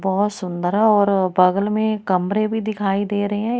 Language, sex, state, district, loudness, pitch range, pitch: Hindi, female, Haryana, Rohtak, -19 LUFS, 190-215 Hz, 205 Hz